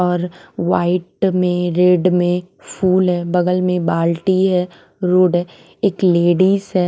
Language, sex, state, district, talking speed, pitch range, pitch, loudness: Hindi, female, Maharashtra, Mumbai Suburban, 140 wpm, 175-185 Hz, 180 Hz, -16 LUFS